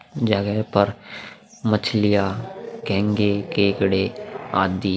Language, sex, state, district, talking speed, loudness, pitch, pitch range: Hindi, male, Bihar, Vaishali, 60 wpm, -21 LUFS, 100 Hz, 100-105 Hz